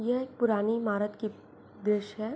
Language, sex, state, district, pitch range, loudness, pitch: Hindi, female, Bihar, Begusarai, 210-230 Hz, -30 LUFS, 215 Hz